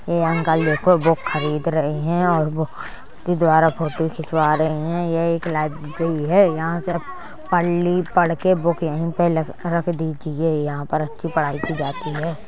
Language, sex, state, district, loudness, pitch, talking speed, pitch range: Hindi, male, Uttar Pradesh, Jalaun, -20 LUFS, 160 Hz, 180 wpm, 155-170 Hz